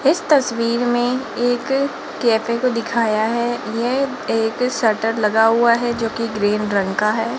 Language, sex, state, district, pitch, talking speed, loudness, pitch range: Hindi, female, Rajasthan, Jaipur, 235 Hz, 160 wpm, -18 LUFS, 225-245 Hz